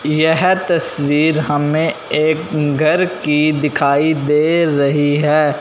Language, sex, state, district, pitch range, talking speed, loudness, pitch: Hindi, male, Punjab, Fazilka, 145-160 Hz, 105 wpm, -15 LUFS, 155 Hz